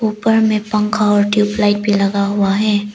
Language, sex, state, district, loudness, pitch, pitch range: Hindi, female, Arunachal Pradesh, Lower Dibang Valley, -15 LUFS, 210 Hz, 205-215 Hz